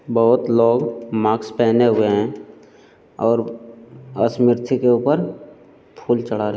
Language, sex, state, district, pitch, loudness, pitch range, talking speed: Hindi, male, Bihar, Jamui, 115 Hz, -18 LUFS, 115-120 Hz, 130 wpm